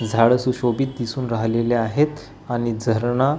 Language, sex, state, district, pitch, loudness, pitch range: Marathi, male, Maharashtra, Gondia, 120 Hz, -21 LUFS, 115-130 Hz